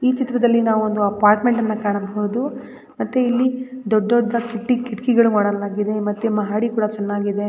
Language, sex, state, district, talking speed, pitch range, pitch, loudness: Kannada, female, Karnataka, Raichur, 145 wpm, 210-245 Hz, 225 Hz, -19 LUFS